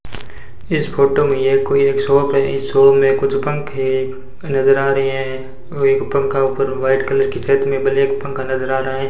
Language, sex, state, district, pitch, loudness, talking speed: Hindi, male, Rajasthan, Bikaner, 135 Hz, -16 LUFS, 210 wpm